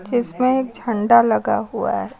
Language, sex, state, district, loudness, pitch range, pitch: Hindi, female, Uttar Pradesh, Lucknow, -19 LUFS, 230-250 Hz, 235 Hz